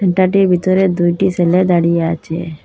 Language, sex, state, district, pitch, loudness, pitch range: Bengali, female, Assam, Hailakandi, 180 Hz, -14 LUFS, 170-185 Hz